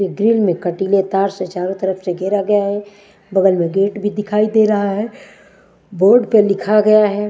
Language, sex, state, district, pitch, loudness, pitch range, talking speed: Hindi, female, Bihar, West Champaran, 200 Hz, -16 LUFS, 190-210 Hz, 195 wpm